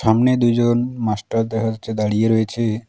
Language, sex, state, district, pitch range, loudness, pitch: Bengali, male, West Bengal, Alipurduar, 110-120 Hz, -19 LUFS, 115 Hz